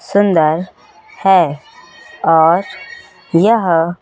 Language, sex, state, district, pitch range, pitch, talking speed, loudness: Hindi, female, Chhattisgarh, Raipur, 165-200 Hz, 175 Hz, 60 wpm, -13 LUFS